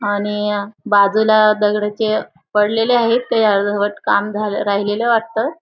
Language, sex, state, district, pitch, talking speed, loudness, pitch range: Marathi, female, Maharashtra, Aurangabad, 210 Hz, 130 wpm, -16 LUFS, 205-220 Hz